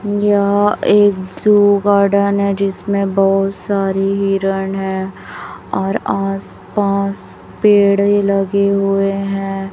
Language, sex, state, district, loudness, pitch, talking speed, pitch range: Hindi, female, Chhattisgarh, Raipur, -15 LUFS, 200 Hz, 105 wpm, 195-200 Hz